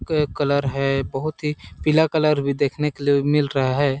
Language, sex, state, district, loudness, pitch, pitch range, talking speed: Hindi, male, Chhattisgarh, Sarguja, -21 LUFS, 145 Hz, 140-150 Hz, 195 wpm